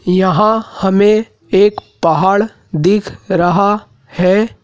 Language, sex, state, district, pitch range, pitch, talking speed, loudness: Hindi, male, Madhya Pradesh, Dhar, 185-210 Hz, 195 Hz, 90 wpm, -13 LUFS